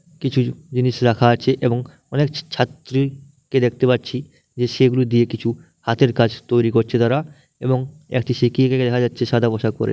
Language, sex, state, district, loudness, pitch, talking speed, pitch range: Bengali, male, West Bengal, Malda, -19 LUFS, 125 Hz, 175 wpm, 120-135 Hz